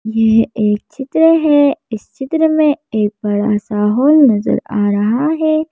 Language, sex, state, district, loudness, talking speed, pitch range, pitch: Hindi, female, Madhya Pradesh, Bhopal, -14 LUFS, 160 wpm, 210-305 Hz, 245 Hz